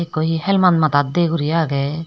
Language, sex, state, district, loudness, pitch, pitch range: Chakma, female, Tripura, Dhalai, -17 LUFS, 165 Hz, 155-170 Hz